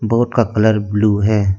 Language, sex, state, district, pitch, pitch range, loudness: Hindi, male, Arunachal Pradesh, Lower Dibang Valley, 105 Hz, 105-115 Hz, -15 LUFS